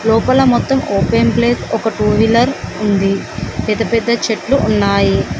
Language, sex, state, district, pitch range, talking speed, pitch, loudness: Telugu, female, Telangana, Komaram Bheem, 200-235 Hz, 135 wpm, 225 Hz, -14 LUFS